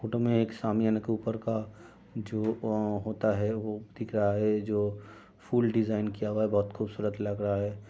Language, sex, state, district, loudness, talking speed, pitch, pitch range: Hindi, male, Uttar Pradesh, Budaun, -30 LUFS, 195 wpm, 110 Hz, 105-110 Hz